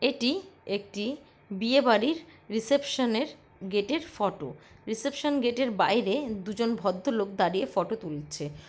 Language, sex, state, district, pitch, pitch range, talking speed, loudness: Bengali, female, West Bengal, Purulia, 225 Hz, 200-280 Hz, 130 wpm, -29 LUFS